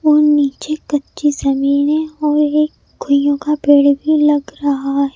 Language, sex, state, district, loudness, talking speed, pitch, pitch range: Hindi, female, Madhya Pradesh, Bhopal, -15 LUFS, 165 wpm, 290 Hz, 280-300 Hz